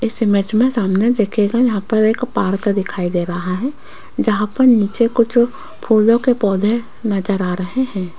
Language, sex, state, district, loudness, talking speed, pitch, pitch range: Hindi, female, Rajasthan, Jaipur, -16 LUFS, 175 wpm, 215 Hz, 195-235 Hz